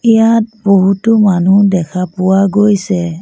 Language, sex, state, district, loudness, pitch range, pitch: Assamese, female, Assam, Sonitpur, -11 LUFS, 185-215 Hz, 195 Hz